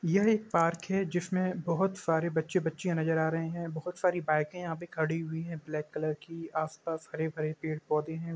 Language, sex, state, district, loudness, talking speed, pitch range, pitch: Hindi, male, Bihar, East Champaran, -32 LUFS, 215 wpm, 160-175 Hz, 165 Hz